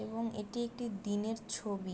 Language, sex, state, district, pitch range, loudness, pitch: Bengali, female, West Bengal, Jalpaiguri, 205-230 Hz, -38 LUFS, 215 Hz